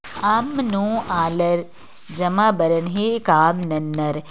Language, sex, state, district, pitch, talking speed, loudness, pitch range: Sadri, female, Chhattisgarh, Jashpur, 175 Hz, 125 wpm, -20 LUFS, 165-210 Hz